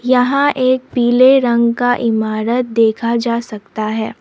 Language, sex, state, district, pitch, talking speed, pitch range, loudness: Hindi, female, Assam, Sonitpur, 235 Hz, 140 wpm, 225-250 Hz, -14 LUFS